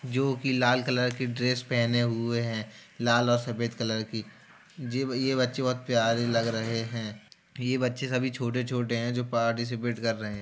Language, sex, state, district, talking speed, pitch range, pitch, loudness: Hindi, male, Uttar Pradesh, Jalaun, 180 wpm, 115-125 Hz, 120 Hz, -28 LUFS